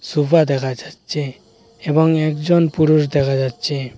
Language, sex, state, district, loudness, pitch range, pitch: Bengali, male, Assam, Hailakandi, -17 LUFS, 135-155 Hz, 150 Hz